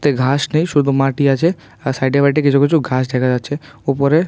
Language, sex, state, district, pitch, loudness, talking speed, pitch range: Bengali, male, Tripura, West Tripura, 140 Hz, -16 LUFS, 210 wpm, 135-145 Hz